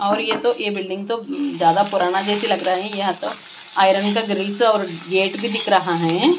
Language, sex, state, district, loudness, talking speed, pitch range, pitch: Hindi, female, Bihar, West Champaran, -19 LUFS, 205 wpm, 190-220 Hz, 200 Hz